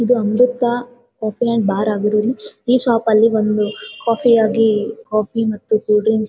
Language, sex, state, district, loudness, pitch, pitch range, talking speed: Kannada, female, Karnataka, Bellary, -17 LUFS, 220 Hz, 215-235 Hz, 155 wpm